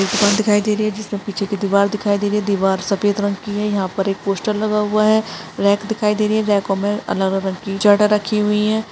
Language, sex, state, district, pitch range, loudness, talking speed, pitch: Hindi, female, Chhattisgarh, Sarguja, 200-210 Hz, -18 LUFS, 260 wpm, 205 Hz